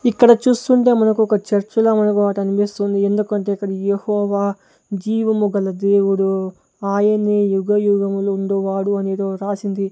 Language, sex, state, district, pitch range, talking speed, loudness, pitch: Telugu, male, Andhra Pradesh, Sri Satya Sai, 195-210 Hz, 110 wpm, -17 LUFS, 200 Hz